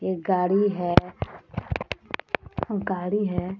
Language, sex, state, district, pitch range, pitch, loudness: Hindi, female, Bihar, East Champaran, 180-200 Hz, 185 Hz, -26 LUFS